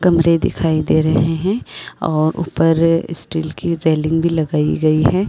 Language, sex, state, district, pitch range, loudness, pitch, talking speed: Hindi, female, Chhattisgarh, Rajnandgaon, 155-170 Hz, -17 LUFS, 160 Hz, 160 wpm